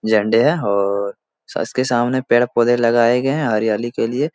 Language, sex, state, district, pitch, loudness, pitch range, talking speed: Hindi, male, Bihar, Jahanabad, 120 Hz, -17 LUFS, 110-130 Hz, 165 wpm